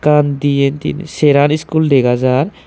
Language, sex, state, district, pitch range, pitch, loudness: Chakma, male, Tripura, Dhalai, 140-155 Hz, 145 Hz, -13 LUFS